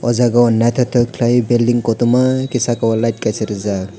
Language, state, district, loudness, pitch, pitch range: Kokborok, Tripura, West Tripura, -15 LUFS, 120 Hz, 115-120 Hz